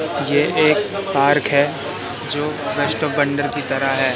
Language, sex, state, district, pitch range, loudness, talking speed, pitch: Hindi, male, Madhya Pradesh, Katni, 140-150 Hz, -18 LUFS, 145 wpm, 145 Hz